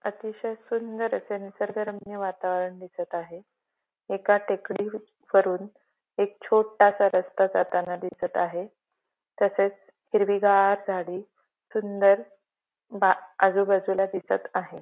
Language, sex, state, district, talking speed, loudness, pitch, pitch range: Marathi, female, Maharashtra, Pune, 95 wpm, -26 LUFS, 195 Hz, 185-205 Hz